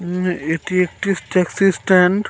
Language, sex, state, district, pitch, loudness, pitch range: Bengali, male, West Bengal, North 24 Parganas, 180 Hz, -18 LUFS, 180-195 Hz